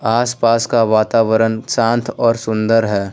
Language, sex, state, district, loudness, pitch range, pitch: Hindi, male, Jharkhand, Ranchi, -15 LUFS, 110-115 Hz, 115 Hz